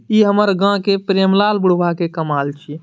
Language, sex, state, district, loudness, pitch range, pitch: Maithili, male, Bihar, Madhepura, -16 LUFS, 165-200 Hz, 190 Hz